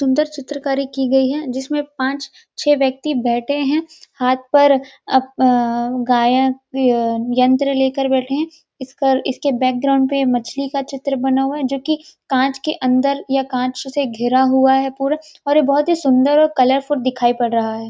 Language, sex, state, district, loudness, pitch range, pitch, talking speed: Hindi, female, Chhattisgarh, Rajnandgaon, -17 LUFS, 255-285 Hz, 270 Hz, 185 wpm